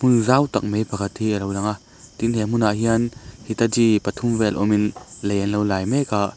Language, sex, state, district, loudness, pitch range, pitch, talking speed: Mizo, male, Mizoram, Aizawl, -21 LUFS, 100-115 Hz, 105 Hz, 225 wpm